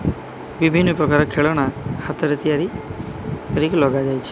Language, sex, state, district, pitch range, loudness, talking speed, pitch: Odia, male, Odisha, Malkangiri, 140-155 Hz, -19 LUFS, 95 wpm, 150 Hz